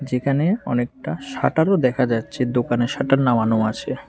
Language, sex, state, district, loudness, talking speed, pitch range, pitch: Bengali, male, Tripura, West Tripura, -20 LUFS, 130 wpm, 120-140 Hz, 125 Hz